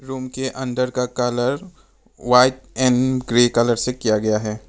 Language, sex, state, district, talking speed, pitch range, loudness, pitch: Hindi, male, Arunachal Pradesh, Papum Pare, 155 wpm, 120-130 Hz, -19 LUFS, 125 Hz